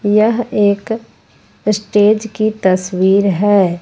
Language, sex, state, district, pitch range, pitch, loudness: Hindi, female, Jharkhand, Ranchi, 195-215 Hz, 205 Hz, -14 LUFS